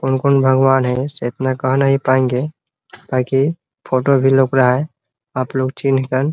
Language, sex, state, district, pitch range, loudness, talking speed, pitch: Hindi, male, Bihar, Muzaffarpur, 130-135 Hz, -16 LUFS, 190 wpm, 130 Hz